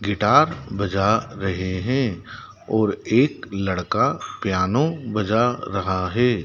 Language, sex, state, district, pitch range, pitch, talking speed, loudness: Hindi, male, Madhya Pradesh, Dhar, 95-120 Hz, 105 Hz, 100 wpm, -21 LUFS